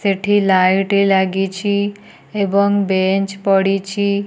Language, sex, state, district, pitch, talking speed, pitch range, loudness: Odia, female, Odisha, Nuapada, 195 Hz, 85 wpm, 195-200 Hz, -16 LUFS